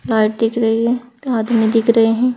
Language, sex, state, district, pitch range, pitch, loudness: Hindi, female, Uttar Pradesh, Saharanpur, 225-240 Hz, 230 Hz, -16 LUFS